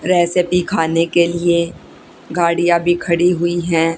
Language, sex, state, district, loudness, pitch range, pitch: Hindi, female, Haryana, Jhajjar, -16 LUFS, 170-175 Hz, 170 Hz